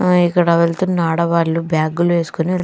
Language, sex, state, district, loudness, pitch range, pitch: Telugu, female, Andhra Pradesh, Chittoor, -16 LUFS, 165-175 Hz, 170 Hz